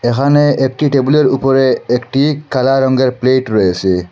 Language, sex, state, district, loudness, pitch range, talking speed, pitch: Bengali, male, Assam, Hailakandi, -13 LUFS, 125-140 Hz, 130 wpm, 130 Hz